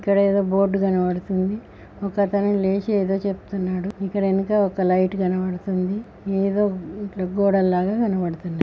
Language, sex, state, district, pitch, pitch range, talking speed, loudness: Telugu, female, Telangana, Nalgonda, 195 Hz, 185-200 Hz, 110 wpm, -22 LUFS